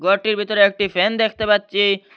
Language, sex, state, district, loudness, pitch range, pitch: Bengali, male, Assam, Hailakandi, -17 LUFS, 200-215 Hz, 205 Hz